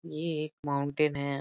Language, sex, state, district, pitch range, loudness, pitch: Hindi, male, Bihar, Jahanabad, 140-155 Hz, -31 LUFS, 150 Hz